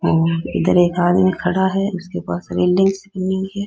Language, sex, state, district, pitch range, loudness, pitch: Rajasthani, female, Rajasthan, Nagaur, 175-190 Hz, -18 LUFS, 185 Hz